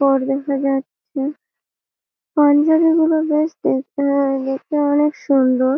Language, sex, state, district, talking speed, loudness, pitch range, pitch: Bengali, female, West Bengal, Malda, 115 wpm, -17 LUFS, 270-300 Hz, 280 Hz